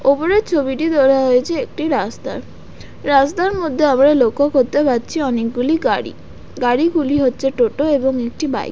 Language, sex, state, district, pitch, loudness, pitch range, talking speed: Bengali, female, West Bengal, Dakshin Dinajpur, 275 Hz, -16 LUFS, 255-305 Hz, 145 wpm